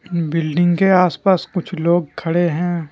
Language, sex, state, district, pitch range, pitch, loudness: Hindi, male, Jharkhand, Deoghar, 165-180 Hz, 175 Hz, -17 LUFS